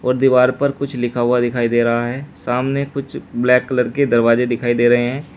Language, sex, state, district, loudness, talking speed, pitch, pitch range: Hindi, male, Uttar Pradesh, Shamli, -17 LUFS, 225 wpm, 125 Hz, 120-135 Hz